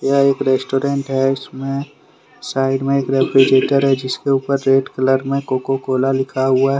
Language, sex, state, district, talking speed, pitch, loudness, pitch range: Hindi, male, Jharkhand, Deoghar, 175 wpm, 135 Hz, -17 LUFS, 130-140 Hz